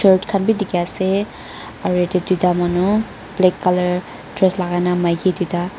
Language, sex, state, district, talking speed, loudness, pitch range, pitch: Nagamese, female, Nagaland, Dimapur, 135 wpm, -18 LUFS, 180-190 Hz, 180 Hz